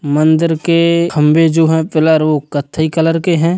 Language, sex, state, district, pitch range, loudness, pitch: Hindi, male, Bihar, Sitamarhi, 155-165 Hz, -12 LUFS, 160 Hz